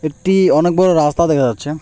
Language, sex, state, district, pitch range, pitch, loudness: Bengali, male, West Bengal, Alipurduar, 150-180 Hz, 155 Hz, -14 LUFS